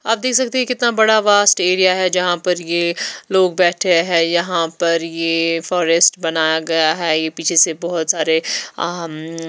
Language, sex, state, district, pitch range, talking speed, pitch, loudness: Hindi, female, Bihar, West Champaran, 165-185 Hz, 185 wpm, 170 Hz, -16 LUFS